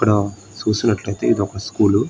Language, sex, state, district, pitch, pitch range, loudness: Telugu, male, Andhra Pradesh, Srikakulam, 105 Hz, 100-110 Hz, -20 LUFS